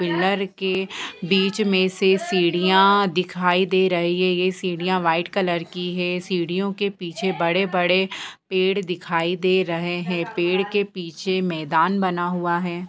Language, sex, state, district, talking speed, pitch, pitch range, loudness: Hindi, female, Bihar, Purnia, 160 wpm, 180 Hz, 175-190 Hz, -21 LUFS